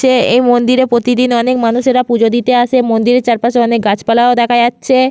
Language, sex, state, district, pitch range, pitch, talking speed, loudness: Bengali, female, West Bengal, Malda, 235-250 Hz, 240 Hz, 175 wpm, -11 LUFS